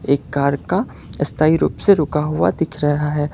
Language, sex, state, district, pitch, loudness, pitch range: Hindi, male, Karnataka, Bangalore, 150 Hz, -18 LUFS, 145-155 Hz